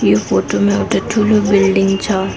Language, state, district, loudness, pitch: Nepali, West Bengal, Darjeeling, -14 LUFS, 195 Hz